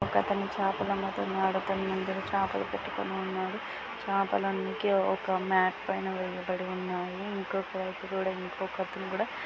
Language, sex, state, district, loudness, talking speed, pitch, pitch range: Telugu, female, Andhra Pradesh, Srikakulam, -32 LUFS, 125 wpm, 190 Hz, 185-195 Hz